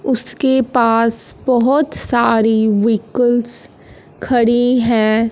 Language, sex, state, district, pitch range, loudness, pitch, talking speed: Hindi, male, Punjab, Fazilka, 225-250 Hz, -15 LUFS, 235 Hz, 80 wpm